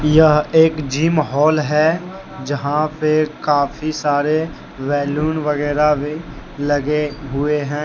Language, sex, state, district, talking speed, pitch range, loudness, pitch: Hindi, male, Jharkhand, Deoghar, 115 wpm, 145-155 Hz, -17 LUFS, 150 Hz